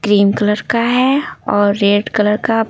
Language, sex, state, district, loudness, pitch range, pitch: Hindi, female, Bihar, Patna, -14 LUFS, 205-230 Hz, 210 Hz